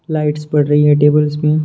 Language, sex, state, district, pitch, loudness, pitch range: Hindi, male, Bihar, Darbhanga, 150 Hz, -13 LUFS, 150-155 Hz